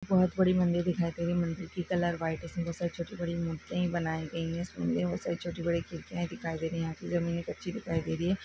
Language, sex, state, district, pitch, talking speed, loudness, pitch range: Hindi, female, Maharashtra, Sindhudurg, 170 Hz, 270 wpm, -32 LUFS, 165-175 Hz